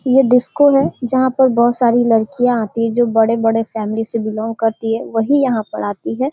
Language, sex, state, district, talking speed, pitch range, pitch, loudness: Hindi, female, Bihar, Darbhanga, 210 wpm, 225-255 Hz, 230 Hz, -15 LUFS